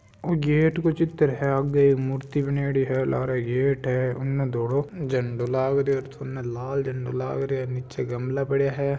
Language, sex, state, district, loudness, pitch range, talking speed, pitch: Marwari, male, Rajasthan, Nagaur, -25 LUFS, 130-140 Hz, 175 wpm, 135 Hz